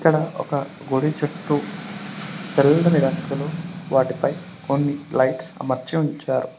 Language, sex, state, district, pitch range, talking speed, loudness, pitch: Telugu, male, Telangana, Mahabubabad, 140-175 Hz, 100 wpm, -22 LUFS, 150 Hz